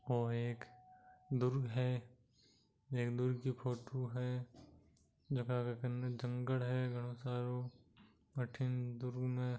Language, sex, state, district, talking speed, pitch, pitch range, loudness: Marwari, male, Rajasthan, Nagaur, 105 wpm, 125 Hz, 120-125 Hz, -41 LUFS